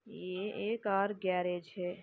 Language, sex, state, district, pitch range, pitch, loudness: Hindi, female, Chhattisgarh, Bastar, 180-210 Hz, 190 Hz, -35 LUFS